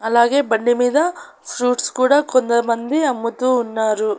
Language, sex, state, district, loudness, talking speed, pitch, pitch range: Telugu, female, Andhra Pradesh, Annamaya, -17 LUFS, 100 wpm, 245 Hz, 230-280 Hz